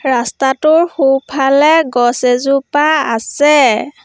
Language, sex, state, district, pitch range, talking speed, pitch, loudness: Assamese, female, Assam, Sonitpur, 255-300 Hz, 75 wpm, 275 Hz, -12 LUFS